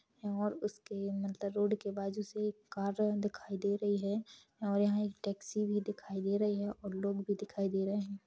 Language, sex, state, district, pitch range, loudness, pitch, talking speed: Hindi, female, Chhattisgarh, Rajnandgaon, 200-210 Hz, -36 LUFS, 205 Hz, 210 wpm